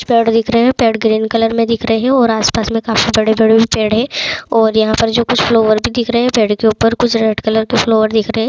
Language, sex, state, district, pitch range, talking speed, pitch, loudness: Hindi, female, Bihar, Bhagalpur, 220-235 Hz, 280 wpm, 225 Hz, -13 LUFS